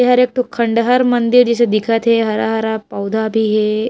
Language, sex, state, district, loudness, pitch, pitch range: Chhattisgarhi, female, Chhattisgarh, Raigarh, -15 LUFS, 225 Hz, 220-240 Hz